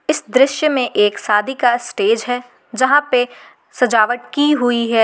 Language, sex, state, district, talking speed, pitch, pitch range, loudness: Hindi, female, Jharkhand, Garhwa, 165 wpm, 245 Hz, 230-270 Hz, -16 LUFS